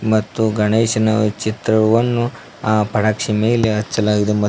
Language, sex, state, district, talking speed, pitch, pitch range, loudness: Kannada, male, Karnataka, Koppal, 105 wpm, 110 Hz, 105-115 Hz, -17 LUFS